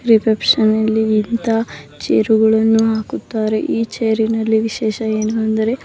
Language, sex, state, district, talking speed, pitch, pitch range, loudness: Kannada, female, Karnataka, Dakshina Kannada, 125 wpm, 220 Hz, 220-225 Hz, -16 LUFS